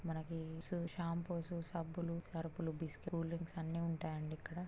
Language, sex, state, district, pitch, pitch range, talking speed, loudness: Telugu, female, Telangana, Karimnagar, 165 Hz, 160-170 Hz, 130 wpm, -43 LUFS